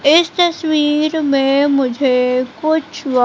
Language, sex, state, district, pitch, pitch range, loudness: Hindi, female, Madhya Pradesh, Katni, 290 Hz, 260-315 Hz, -15 LUFS